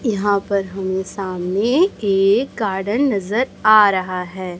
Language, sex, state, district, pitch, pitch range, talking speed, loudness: Hindi, male, Chhattisgarh, Raipur, 200 Hz, 190-215 Hz, 130 wpm, -18 LUFS